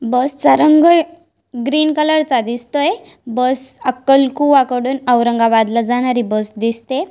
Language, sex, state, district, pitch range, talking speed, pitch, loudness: Marathi, female, Maharashtra, Dhule, 240-290 Hz, 120 wpm, 255 Hz, -14 LUFS